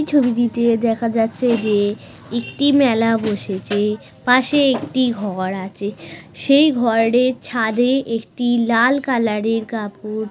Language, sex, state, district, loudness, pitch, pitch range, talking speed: Bengali, female, West Bengal, North 24 Parganas, -18 LUFS, 230 Hz, 215-250 Hz, 115 wpm